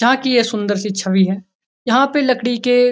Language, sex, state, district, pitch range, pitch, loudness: Hindi, male, Uttarakhand, Uttarkashi, 200-250 Hz, 240 Hz, -16 LUFS